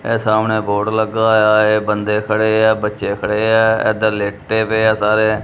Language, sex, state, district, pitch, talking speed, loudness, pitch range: Punjabi, male, Punjab, Kapurthala, 110 Hz, 200 wpm, -15 LUFS, 105-110 Hz